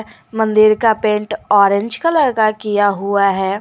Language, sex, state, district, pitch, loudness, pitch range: Hindi, female, Jharkhand, Garhwa, 215 Hz, -15 LUFS, 200-220 Hz